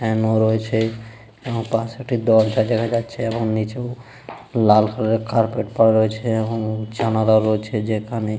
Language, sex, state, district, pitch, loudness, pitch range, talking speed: Bengali, male, West Bengal, Jalpaiguri, 110 Hz, -20 LUFS, 110-115 Hz, 150 wpm